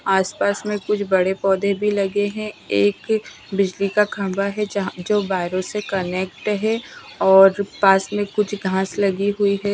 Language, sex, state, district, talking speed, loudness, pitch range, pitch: Hindi, female, Punjab, Fazilka, 165 wpm, -20 LUFS, 190-205 Hz, 200 Hz